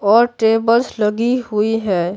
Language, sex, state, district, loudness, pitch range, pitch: Hindi, male, Bihar, Patna, -16 LUFS, 210-235 Hz, 225 Hz